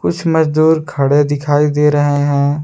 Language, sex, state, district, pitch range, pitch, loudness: Hindi, male, Jharkhand, Palamu, 145-155 Hz, 145 Hz, -13 LUFS